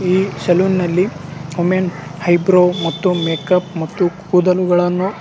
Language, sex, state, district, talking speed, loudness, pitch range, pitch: Kannada, male, Karnataka, Raichur, 115 wpm, -16 LUFS, 170-185 Hz, 180 Hz